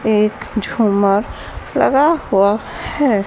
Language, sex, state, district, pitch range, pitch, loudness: Hindi, female, Haryana, Charkhi Dadri, 200-250 Hz, 215 Hz, -16 LUFS